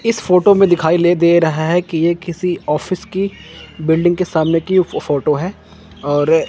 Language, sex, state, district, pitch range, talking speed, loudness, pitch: Hindi, male, Chandigarh, Chandigarh, 160-180 Hz, 185 wpm, -15 LUFS, 170 Hz